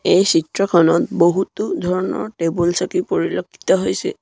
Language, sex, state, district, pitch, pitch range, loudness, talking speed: Assamese, male, Assam, Sonitpur, 180 Hz, 170-190 Hz, -18 LUFS, 115 wpm